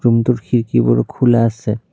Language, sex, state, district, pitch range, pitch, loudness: Assamese, male, Assam, Kamrup Metropolitan, 105-120 Hz, 115 Hz, -15 LUFS